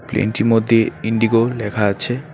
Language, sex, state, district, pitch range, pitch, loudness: Bengali, male, West Bengal, Alipurduar, 110-115 Hz, 115 Hz, -17 LUFS